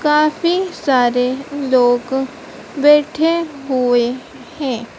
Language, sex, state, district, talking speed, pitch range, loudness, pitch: Hindi, female, Madhya Pradesh, Dhar, 70 wpm, 250-305 Hz, -16 LUFS, 275 Hz